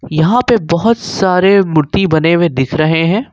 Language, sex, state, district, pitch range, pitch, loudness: Hindi, male, Jharkhand, Ranchi, 160-195 Hz, 175 Hz, -12 LUFS